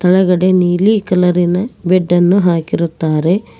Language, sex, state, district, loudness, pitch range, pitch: Kannada, female, Karnataka, Koppal, -13 LUFS, 175-185 Hz, 180 Hz